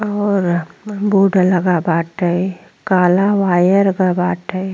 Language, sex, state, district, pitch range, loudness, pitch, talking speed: Bhojpuri, female, Uttar Pradesh, Ghazipur, 180-195 Hz, -15 LUFS, 185 Hz, 90 wpm